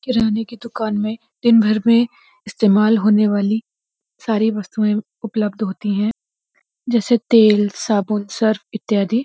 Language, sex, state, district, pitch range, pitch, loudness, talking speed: Hindi, female, Uttarakhand, Uttarkashi, 210-230 Hz, 215 Hz, -18 LUFS, 130 wpm